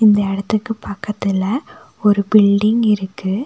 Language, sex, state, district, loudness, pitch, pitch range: Tamil, female, Tamil Nadu, Nilgiris, -17 LUFS, 210 Hz, 200-220 Hz